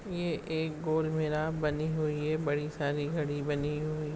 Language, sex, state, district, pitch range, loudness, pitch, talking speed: Hindi, male, Goa, North and South Goa, 150-160 Hz, -32 LUFS, 155 Hz, 160 wpm